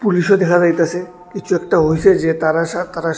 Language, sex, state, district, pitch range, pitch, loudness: Bengali, male, Tripura, West Tripura, 165-180 Hz, 175 Hz, -15 LUFS